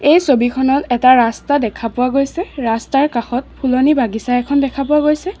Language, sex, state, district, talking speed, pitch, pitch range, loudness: Assamese, female, Assam, Sonitpur, 165 wpm, 265 Hz, 245-285 Hz, -15 LUFS